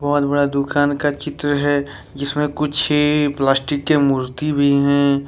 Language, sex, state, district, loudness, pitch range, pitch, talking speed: Hindi, male, Jharkhand, Ranchi, -18 LUFS, 140-145 Hz, 145 Hz, 150 wpm